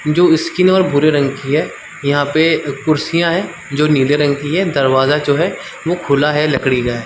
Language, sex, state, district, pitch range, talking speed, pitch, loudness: Hindi, male, Chhattisgarh, Sarguja, 140-165 Hz, 220 wpm, 150 Hz, -15 LUFS